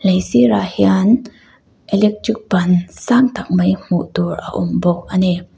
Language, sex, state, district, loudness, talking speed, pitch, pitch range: Mizo, female, Mizoram, Aizawl, -16 LUFS, 170 wpm, 185 Hz, 175-210 Hz